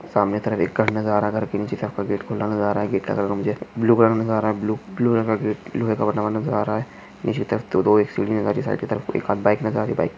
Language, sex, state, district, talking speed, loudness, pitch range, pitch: Hindi, male, Maharashtra, Chandrapur, 345 wpm, -22 LUFS, 105-110 Hz, 105 Hz